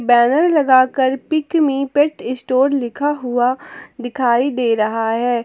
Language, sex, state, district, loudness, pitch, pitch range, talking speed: Hindi, female, Jharkhand, Palamu, -16 LUFS, 260 Hz, 245-285 Hz, 145 wpm